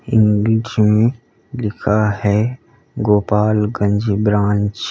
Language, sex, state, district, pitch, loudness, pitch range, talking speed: Hindi, male, Uttar Pradesh, Lalitpur, 105 Hz, -16 LUFS, 105-115 Hz, 85 wpm